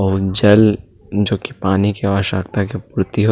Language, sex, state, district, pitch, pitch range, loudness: Chhattisgarhi, male, Chhattisgarh, Rajnandgaon, 100 Hz, 95-105 Hz, -17 LUFS